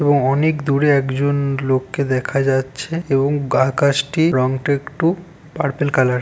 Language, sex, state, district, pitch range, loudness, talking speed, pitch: Bengali, male, West Bengal, Purulia, 135-145 Hz, -18 LUFS, 145 wpm, 140 Hz